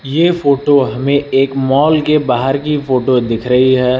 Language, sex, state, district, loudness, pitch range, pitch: Hindi, male, Uttar Pradesh, Lucknow, -13 LUFS, 130-145 Hz, 135 Hz